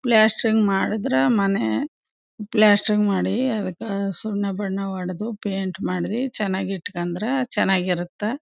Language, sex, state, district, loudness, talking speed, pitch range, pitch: Kannada, female, Karnataka, Chamarajanagar, -22 LUFS, 105 wpm, 190-220 Hz, 205 Hz